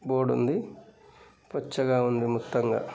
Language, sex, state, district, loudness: Telugu, female, Telangana, Nalgonda, -27 LUFS